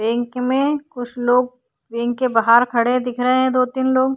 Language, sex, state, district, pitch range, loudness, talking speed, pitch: Hindi, female, Uttar Pradesh, Hamirpur, 240-260 Hz, -18 LUFS, 200 wpm, 250 Hz